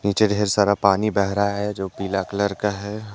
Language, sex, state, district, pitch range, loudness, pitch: Hindi, male, Jharkhand, Deoghar, 100-105 Hz, -21 LUFS, 100 Hz